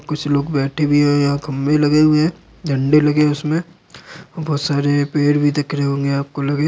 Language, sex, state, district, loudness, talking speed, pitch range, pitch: Hindi, male, Bihar, Jamui, -17 LUFS, 215 wpm, 140-150 Hz, 145 Hz